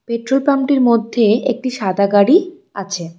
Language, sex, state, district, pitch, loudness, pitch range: Bengali, female, West Bengal, Cooch Behar, 235 Hz, -15 LUFS, 200-270 Hz